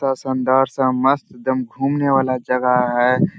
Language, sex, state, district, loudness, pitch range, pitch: Hindi, male, Bihar, Jahanabad, -18 LUFS, 125-135 Hz, 130 Hz